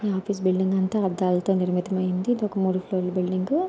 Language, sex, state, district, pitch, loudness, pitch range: Telugu, female, Andhra Pradesh, Anantapur, 190 Hz, -24 LUFS, 185-200 Hz